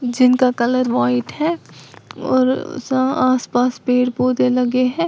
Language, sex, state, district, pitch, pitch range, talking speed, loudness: Hindi, female, Uttar Pradesh, Lalitpur, 255 Hz, 245-260 Hz, 130 wpm, -17 LUFS